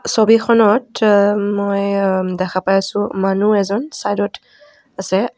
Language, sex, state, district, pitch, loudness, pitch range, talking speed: Assamese, female, Assam, Kamrup Metropolitan, 205 Hz, -16 LUFS, 195-220 Hz, 135 wpm